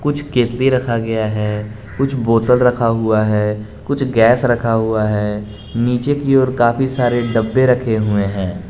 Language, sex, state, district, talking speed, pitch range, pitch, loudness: Hindi, male, Jharkhand, Garhwa, 165 wpm, 105-125 Hz, 115 Hz, -16 LUFS